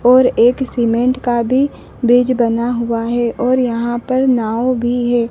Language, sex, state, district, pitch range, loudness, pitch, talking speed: Hindi, female, Madhya Pradesh, Dhar, 235-255 Hz, -15 LUFS, 240 Hz, 170 wpm